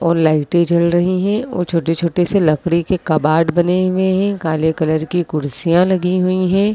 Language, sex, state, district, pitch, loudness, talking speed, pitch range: Hindi, female, Uttar Pradesh, Muzaffarnagar, 175 Hz, -16 LUFS, 195 wpm, 165-185 Hz